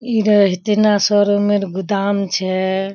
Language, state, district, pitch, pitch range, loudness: Surjapuri, Bihar, Kishanganj, 200 Hz, 190-210 Hz, -16 LUFS